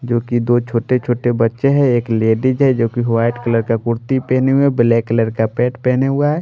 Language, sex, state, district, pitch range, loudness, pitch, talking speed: Hindi, male, Maharashtra, Washim, 115-130 Hz, -16 LUFS, 120 Hz, 235 wpm